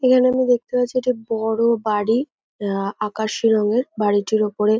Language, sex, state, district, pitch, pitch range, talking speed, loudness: Bengali, female, West Bengal, North 24 Parganas, 220 Hz, 215-250 Hz, 150 wpm, -20 LUFS